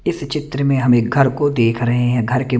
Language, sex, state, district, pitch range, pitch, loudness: Hindi, male, Chandigarh, Chandigarh, 120-140 Hz, 125 Hz, -17 LUFS